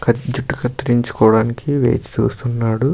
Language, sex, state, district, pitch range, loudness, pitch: Telugu, male, Karnataka, Bellary, 115-135 Hz, -17 LUFS, 120 Hz